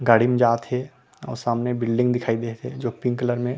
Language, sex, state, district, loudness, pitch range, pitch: Chhattisgarhi, male, Chhattisgarh, Rajnandgaon, -23 LUFS, 115-125 Hz, 120 Hz